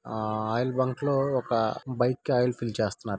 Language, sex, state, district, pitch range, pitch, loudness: Telugu, male, Andhra Pradesh, Guntur, 110-130 Hz, 120 Hz, -28 LUFS